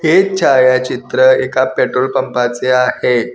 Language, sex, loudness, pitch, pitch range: Marathi, male, -13 LUFS, 130 Hz, 125-130 Hz